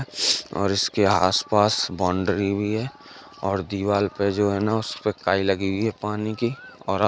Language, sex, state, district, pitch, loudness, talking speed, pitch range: Hindi, male, Uttar Pradesh, Jalaun, 100 Hz, -23 LUFS, 180 wpm, 100-105 Hz